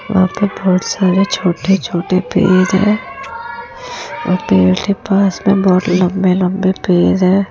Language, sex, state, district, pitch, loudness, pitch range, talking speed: Hindi, female, Rajasthan, Jaipur, 190 Hz, -14 LUFS, 185-200 Hz, 120 wpm